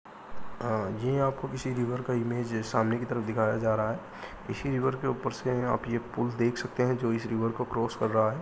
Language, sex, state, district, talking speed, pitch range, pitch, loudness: Hindi, male, Uttar Pradesh, Muzaffarnagar, 235 wpm, 110-125 Hz, 120 Hz, -30 LUFS